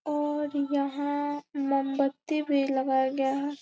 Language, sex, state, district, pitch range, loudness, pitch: Hindi, female, Bihar, Gopalganj, 275-290 Hz, -28 LUFS, 285 Hz